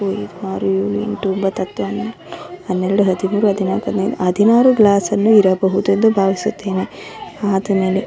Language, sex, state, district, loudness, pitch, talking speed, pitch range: Kannada, female, Karnataka, Dharwad, -16 LUFS, 195 Hz, 110 wpm, 185-205 Hz